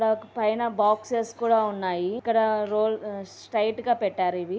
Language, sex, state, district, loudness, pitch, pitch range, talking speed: Telugu, female, Andhra Pradesh, Anantapur, -25 LUFS, 215 Hz, 205-225 Hz, 155 wpm